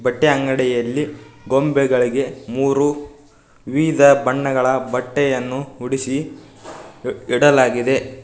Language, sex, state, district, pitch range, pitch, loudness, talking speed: Kannada, male, Karnataka, Koppal, 130-145 Hz, 135 Hz, -18 LUFS, 80 wpm